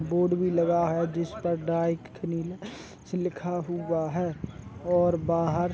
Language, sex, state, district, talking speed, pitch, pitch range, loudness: Hindi, male, Chhattisgarh, Raigarh, 155 wpm, 170 Hz, 170-175 Hz, -28 LUFS